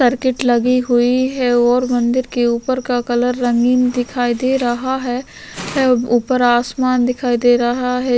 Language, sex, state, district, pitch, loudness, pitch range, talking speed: Hindi, female, Chhattisgarh, Korba, 245 Hz, -16 LUFS, 240-255 Hz, 155 wpm